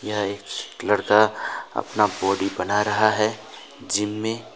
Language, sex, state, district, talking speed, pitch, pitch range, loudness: Hindi, male, West Bengal, Alipurduar, 130 wpm, 105 Hz, 100-110 Hz, -23 LUFS